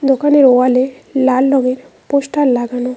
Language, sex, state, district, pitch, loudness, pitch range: Bengali, female, West Bengal, Cooch Behar, 260 Hz, -13 LUFS, 255-275 Hz